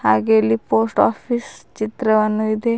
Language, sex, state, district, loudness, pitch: Kannada, female, Karnataka, Bidar, -18 LUFS, 215 Hz